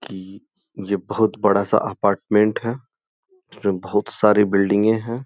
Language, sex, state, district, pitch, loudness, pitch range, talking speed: Hindi, male, Uttar Pradesh, Gorakhpur, 105 Hz, -20 LUFS, 100-110 Hz, 135 wpm